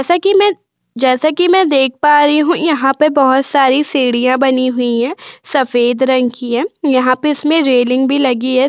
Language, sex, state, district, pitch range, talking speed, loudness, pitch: Hindi, female, Uttar Pradesh, Budaun, 255-305 Hz, 200 wpm, -12 LUFS, 270 Hz